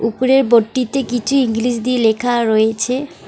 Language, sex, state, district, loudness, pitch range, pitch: Bengali, female, West Bengal, Alipurduar, -16 LUFS, 225-260 Hz, 245 Hz